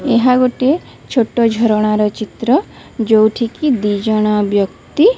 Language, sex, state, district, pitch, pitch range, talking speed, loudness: Odia, female, Odisha, Sambalpur, 230 Hz, 215-255 Hz, 115 wpm, -15 LUFS